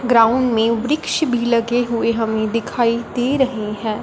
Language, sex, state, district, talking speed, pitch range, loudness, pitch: Hindi, female, Punjab, Fazilka, 165 wpm, 225-245 Hz, -18 LUFS, 230 Hz